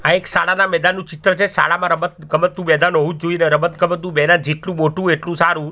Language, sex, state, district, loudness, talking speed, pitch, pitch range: Gujarati, male, Gujarat, Gandhinagar, -16 LUFS, 220 wpm, 170 Hz, 160-180 Hz